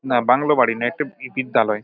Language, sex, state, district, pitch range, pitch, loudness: Bengali, male, West Bengal, Paschim Medinipur, 115-135 Hz, 125 Hz, -19 LUFS